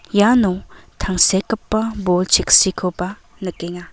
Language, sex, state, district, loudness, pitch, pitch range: Garo, female, Meghalaya, West Garo Hills, -16 LUFS, 190 Hz, 180-210 Hz